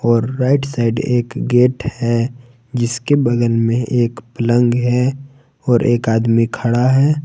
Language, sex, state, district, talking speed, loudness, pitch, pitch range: Hindi, male, Jharkhand, Palamu, 140 wpm, -16 LUFS, 120 Hz, 115-130 Hz